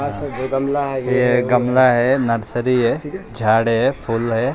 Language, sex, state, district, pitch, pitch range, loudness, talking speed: Hindi, male, Maharashtra, Mumbai Suburban, 125 Hz, 115-130 Hz, -18 LUFS, 185 wpm